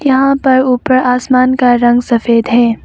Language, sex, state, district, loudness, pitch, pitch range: Hindi, female, Arunachal Pradesh, Longding, -11 LUFS, 250 Hz, 240-260 Hz